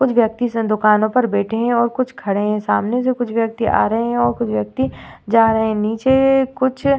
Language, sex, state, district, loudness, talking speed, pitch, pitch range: Hindi, female, Uttar Pradesh, Varanasi, -17 LUFS, 230 wpm, 225 Hz, 210-250 Hz